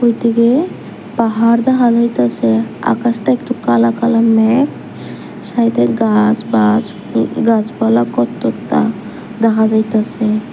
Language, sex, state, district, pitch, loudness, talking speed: Bengali, female, Tripura, Unakoti, 220 Hz, -14 LUFS, 95 wpm